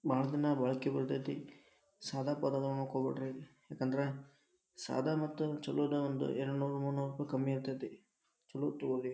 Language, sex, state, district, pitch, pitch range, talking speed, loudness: Kannada, male, Karnataka, Dharwad, 135 Hz, 135-145 Hz, 120 wpm, -37 LUFS